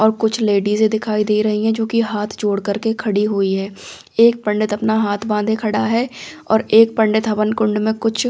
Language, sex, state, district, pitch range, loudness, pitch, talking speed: Hindi, female, Delhi, New Delhi, 210-220 Hz, -17 LUFS, 215 Hz, 215 wpm